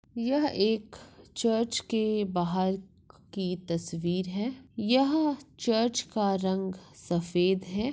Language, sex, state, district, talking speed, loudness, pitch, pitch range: Hindi, female, Maharashtra, Sindhudurg, 105 wpm, -29 LUFS, 200 Hz, 185-230 Hz